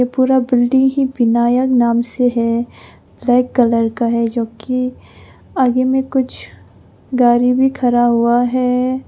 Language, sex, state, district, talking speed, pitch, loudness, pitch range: Hindi, female, Arunachal Pradesh, Papum Pare, 140 wpm, 245 Hz, -15 LUFS, 235-260 Hz